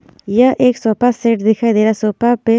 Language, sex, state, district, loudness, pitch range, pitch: Hindi, female, Himachal Pradesh, Shimla, -14 LUFS, 220-240 Hz, 230 Hz